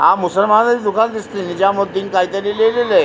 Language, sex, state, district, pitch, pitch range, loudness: Marathi, male, Maharashtra, Aurangabad, 205 Hz, 195-225 Hz, -16 LUFS